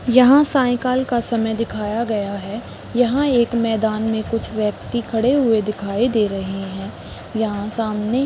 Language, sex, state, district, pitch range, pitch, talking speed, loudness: Hindi, female, Chhattisgarh, Balrampur, 210-245 Hz, 225 Hz, 160 wpm, -19 LUFS